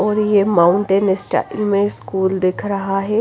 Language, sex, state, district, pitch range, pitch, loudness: Hindi, female, Himachal Pradesh, Shimla, 190-205 Hz, 200 Hz, -17 LUFS